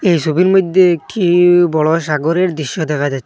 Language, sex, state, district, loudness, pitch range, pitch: Bengali, male, Assam, Hailakandi, -13 LUFS, 155-180 Hz, 170 Hz